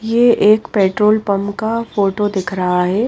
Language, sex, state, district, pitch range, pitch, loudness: Hindi, female, Himachal Pradesh, Shimla, 195-225 Hz, 205 Hz, -15 LUFS